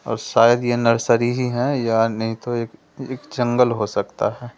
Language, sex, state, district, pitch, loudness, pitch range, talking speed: Hindi, male, Delhi, New Delhi, 120 Hz, -20 LUFS, 115-125 Hz, 195 wpm